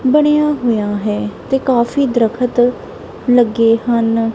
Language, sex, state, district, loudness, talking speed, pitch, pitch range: Punjabi, female, Punjab, Kapurthala, -15 LUFS, 110 wpm, 240 Hz, 225-260 Hz